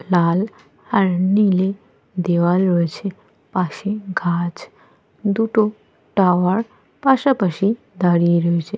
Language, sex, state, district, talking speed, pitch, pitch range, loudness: Bengali, female, Jharkhand, Jamtara, 80 wpm, 190 Hz, 175-210 Hz, -19 LUFS